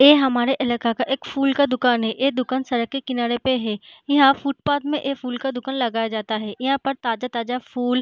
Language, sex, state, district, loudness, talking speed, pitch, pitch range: Hindi, female, Bihar, Jahanabad, -21 LUFS, 255 wpm, 255 Hz, 240-275 Hz